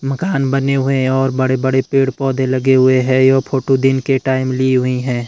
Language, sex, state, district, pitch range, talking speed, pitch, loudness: Hindi, male, Himachal Pradesh, Shimla, 130-135 Hz, 225 wpm, 130 Hz, -15 LUFS